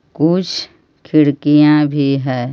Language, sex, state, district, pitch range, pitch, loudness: Hindi, female, Jharkhand, Palamu, 140-150 Hz, 145 Hz, -14 LUFS